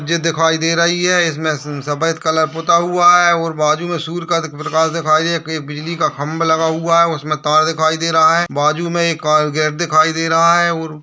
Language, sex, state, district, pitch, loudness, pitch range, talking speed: Hindi, male, Bihar, Bhagalpur, 160 Hz, -15 LUFS, 155-170 Hz, 230 wpm